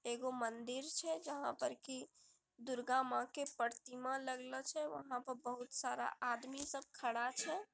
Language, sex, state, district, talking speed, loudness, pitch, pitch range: Maithili, female, Bihar, Bhagalpur, 155 wpm, -43 LUFS, 255 Hz, 245-275 Hz